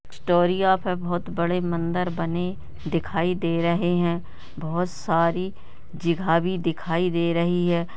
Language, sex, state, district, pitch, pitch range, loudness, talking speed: Hindi, male, Rajasthan, Nagaur, 175 Hz, 170-180 Hz, -24 LUFS, 145 wpm